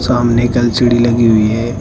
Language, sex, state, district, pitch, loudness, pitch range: Hindi, male, Uttar Pradesh, Shamli, 120 Hz, -12 LUFS, 115-120 Hz